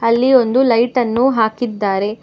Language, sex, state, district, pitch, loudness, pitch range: Kannada, female, Karnataka, Bangalore, 235 Hz, -15 LUFS, 220-250 Hz